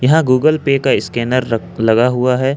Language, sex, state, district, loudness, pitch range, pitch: Hindi, male, Jharkhand, Ranchi, -14 LUFS, 120-135 Hz, 125 Hz